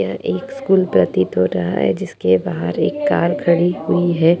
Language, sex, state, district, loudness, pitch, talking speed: Hindi, female, Chhattisgarh, Jashpur, -17 LUFS, 170 Hz, 205 wpm